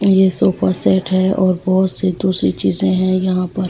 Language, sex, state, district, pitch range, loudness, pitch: Hindi, female, Delhi, New Delhi, 180-190 Hz, -16 LUFS, 185 Hz